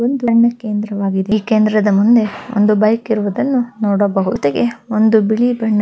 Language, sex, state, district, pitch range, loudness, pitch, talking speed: Kannada, female, Karnataka, Bellary, 205-230 Hz, -15 LUFS, 215 Hz, 135 wpm